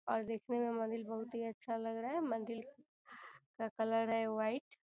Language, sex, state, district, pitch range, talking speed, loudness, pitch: Hindi, female, Bihar, Gopalganj, 225-235 Hz, 195 wpm, -40 LUFS, 225 Hz